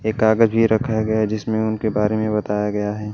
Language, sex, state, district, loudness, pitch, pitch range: Hindi, male, Odisha, Malkangiri, -19 LUFS, 110 Hz, 105-110 Hz